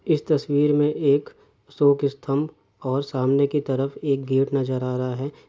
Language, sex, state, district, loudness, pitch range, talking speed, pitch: Hindi, male, Andhra Pradesh, Guntur, -23 LUFS, 135-145 Hz, 175 wpm, 140 Hz